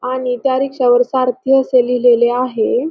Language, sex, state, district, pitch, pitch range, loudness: Marathi, female, Maharashtra, Pune, 250 Hz, 245-265 Hz, -14 LUFS